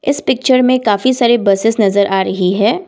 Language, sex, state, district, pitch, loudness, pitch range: Hindi, female, Assam, Kamrup Metropolitan, 225 Hz, -13 LUFS, 200-255 Hz